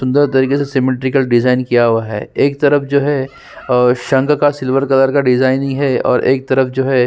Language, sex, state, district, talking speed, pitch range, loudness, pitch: Hindi, male, Uttarakhand, Tehri Garhwal, 210 wpm, 130-140 Hz, -14 LUFS, 130 Hz